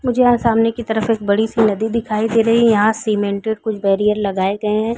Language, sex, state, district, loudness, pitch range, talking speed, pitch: Hindi, female, Chhattisgarh, Raigarh, -17 LUFS, 210-230 Hz, 240 wpm, 220 Hz